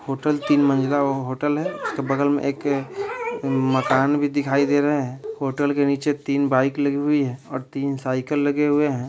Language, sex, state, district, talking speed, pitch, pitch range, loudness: Bhojpuri, male, Bihar, Saran, 190 wpm, 140 Hz, 135-145 Hz, -22 LUFS